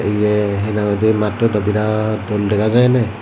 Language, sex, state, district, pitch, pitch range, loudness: Chakma, male, Tripura, Dhalai, 105 Hz, 105-110 Hz, -16 LUFS